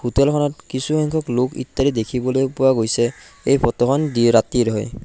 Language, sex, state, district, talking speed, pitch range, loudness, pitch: Assamese, male, Assam, Kamrup Metropolitan, 145 wpm, 120-140 Hz, -19 LUFS, 130 Hz